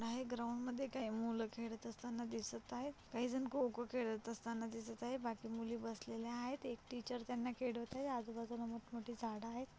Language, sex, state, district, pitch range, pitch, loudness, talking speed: Marathi, female, Maharashtra, Chandrapur, 230-245 Hz, 235 Hz, -45 LUFS, 185 wpm